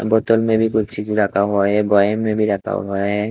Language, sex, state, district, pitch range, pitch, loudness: Hindi, male, Chhattisgarh, Raipur, 100-110 Hz, 105 Hz, -18 LUFS